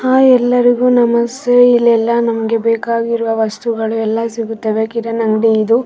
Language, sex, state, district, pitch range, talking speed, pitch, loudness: Kannada, female, Karnataka, Raichur, 225-240 Hz, 125 wpm, 230 Hz, -13 LUFS